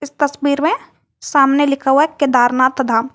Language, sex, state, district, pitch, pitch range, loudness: Hindi, female, Jharkhand, Garhwa, 280 Hz, 265-290 Hz, -15 LUFS